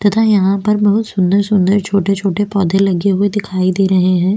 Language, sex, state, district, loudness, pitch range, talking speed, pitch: Hindi, female, Chhattisgarh, Bastar, -14 LUFS, 190-205 Hz, 190 wpm, 195 Hz